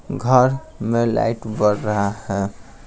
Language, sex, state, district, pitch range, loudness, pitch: Hindi, male, Bihar, Patna, 105-120 Hz, -20 LUFS, 115 Hz